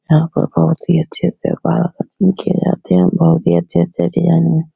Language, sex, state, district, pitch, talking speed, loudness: Hindi, male, Bihar, Begusarai, 155 Hz, 190 wpm, -15 LUFS